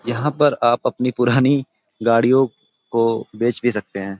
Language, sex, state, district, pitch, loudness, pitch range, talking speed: Hindi, male, Uttar Pradesh, Gorakhpur, 120 Hz, -19 LUFS, 115-130 Hz, 155 wpm